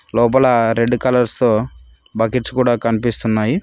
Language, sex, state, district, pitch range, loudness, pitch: Telugu, male, Telangana, Mahabubabad, 110-125 Hz, -16 LUFS, 115 Hz